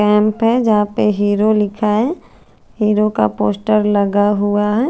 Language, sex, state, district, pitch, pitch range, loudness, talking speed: Hindi, female, Chandigarh, Chandigarh, 210 Hz, 205-215 Hz, -15 LUFS, 160 wpm